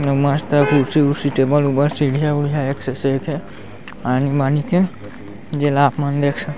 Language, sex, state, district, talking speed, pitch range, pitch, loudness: Chhattisgarhi, male, Chhattisgarh, Sarguja, 180 wpm, 135-145 Hz, 140 Hz, -18 LUFS